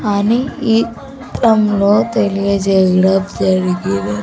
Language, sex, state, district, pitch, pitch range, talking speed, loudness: Telugu, female, Andhra Pradesh, Sri Satya Sai, 200 Hz, 190-225 Hz, 70 wpm, -14 LUFS